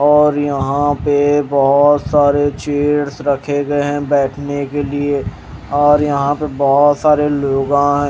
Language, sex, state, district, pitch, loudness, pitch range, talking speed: Hindi, male, Chhattisgarh, Raipur, 145 Hz, -15 LUFS, 140-145 Hz, 150 wpm